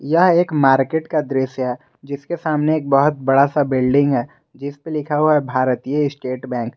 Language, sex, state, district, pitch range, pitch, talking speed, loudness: Hindi, male, Jharkhand, Garhwa, 130-150 Hz, 140 Hz, 195 wpm, -18 LUFS